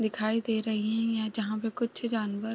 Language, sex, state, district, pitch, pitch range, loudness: Hindi, female, Bihar, East Champaran, 220 Hz, 215-225 Hz, -30 LUFS